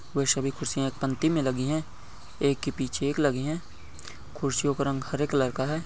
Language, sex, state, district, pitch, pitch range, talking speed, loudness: Hindi, male, Goa, North and South Goa, 140 Hz, 130-145 Hz, 205 wpm, -28 LUFS